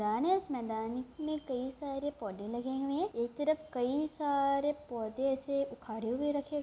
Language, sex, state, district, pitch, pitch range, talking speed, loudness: Hindi, female, Bihar, Jamui, 275 Hz, 240-295 Hz, 200 wpm, -35 LUFS